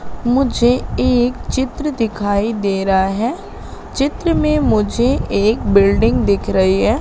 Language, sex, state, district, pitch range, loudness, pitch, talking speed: Hindi, female, Madhya Pradesh, Katni, 200-255 Hz, -16 LUFS, 225 Hz, 130 wpm